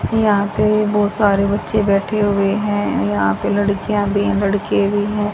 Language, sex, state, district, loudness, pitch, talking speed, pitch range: Hindi, female, Haryana, Jhajjar, -17 LUFS, 205 Hz, 170 wpm, 200-210 Hz